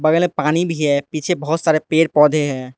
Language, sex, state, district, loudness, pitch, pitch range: Hindi, male, Arunachal Pradesh, Lower Dibang Valley, -17 LUFS, 155 Hz, 150-165 Hz